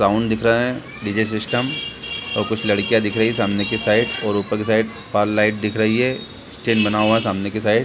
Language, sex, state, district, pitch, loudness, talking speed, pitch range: Hindi, male, Bihar, Saran, 110 Hz, -19 LUFS, 245 wpm, 105-115 Hz